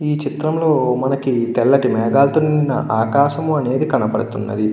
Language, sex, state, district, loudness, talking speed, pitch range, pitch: Telugu, male, Andhra Pradesh, Krishna, -17 LUFS, 115 wpm, 115-150 Hz, 135 Hz